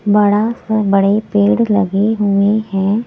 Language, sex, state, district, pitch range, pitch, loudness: Hindi, female, Delhi, New Delhi, 200-215 Hz, 205 Hz, -14 LUFS